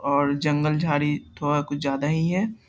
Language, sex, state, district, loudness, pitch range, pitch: Hindi, male, Bihar, Saharsa, -24 LUFS, 145-155 Hz, 145 Hz